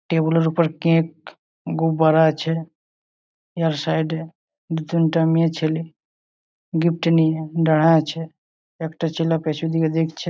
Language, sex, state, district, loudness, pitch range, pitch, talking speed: Bengali, male, West Bengal, Malda, -20 LUFS, 160-165 Hz, 160 Hz, 120 wpm